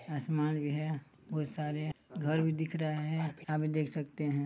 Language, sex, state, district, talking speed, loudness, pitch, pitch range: Hindi, male, Chhattisgarh, Sarguja, 200 wpm, -35 LUFS, 155 Hz, 150-155 Hz